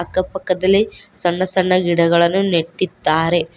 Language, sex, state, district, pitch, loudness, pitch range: Kannada, female, Karnataka, Koppal, 180 Hz, -17 LUFS, 170-185 Hz